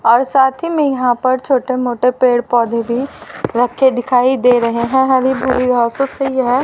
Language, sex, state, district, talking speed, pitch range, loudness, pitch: Hindi, female, Haryana, Charkhi Dadri, 190 wpm, 245-265 Hz, -14 LUFS, 255 Hz